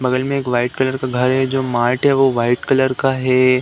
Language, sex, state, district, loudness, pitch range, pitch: Hindi, male, Uttar Pradesh, Deoria, -17 LUFS, 125-135 Hz, 130 Hz